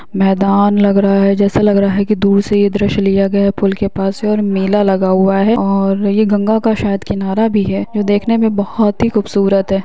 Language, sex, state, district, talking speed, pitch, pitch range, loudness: Hindi, female, Bihar, Muzaffarpur, 235 wpm, 200 Hz, 195-205 Hz, -13 LUFS